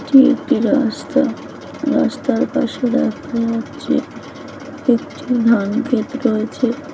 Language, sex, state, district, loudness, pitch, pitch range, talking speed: Bengali, female, West Bengal, Jalpaiguri, -18 LUFS, 270 Hz, 235-285 Hz, 85 wpm